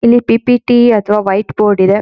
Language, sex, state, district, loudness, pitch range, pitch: Kannada, female, Karnataka, Shimoga, -11 LUFS, 205-240 Hz, 215 Hz